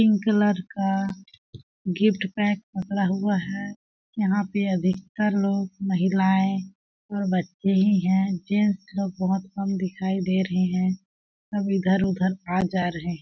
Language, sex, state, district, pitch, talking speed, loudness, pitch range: Hindi, female, Chhattisgarh, Balrampur, 195 Hz, 140 wpm, -24 LUFS, 185-200 Hz